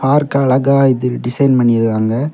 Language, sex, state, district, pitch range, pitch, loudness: Tamil, male, Tamil Nadu, Kanyakumari, 120-140 Hz, 130 Hz, -13 LUFS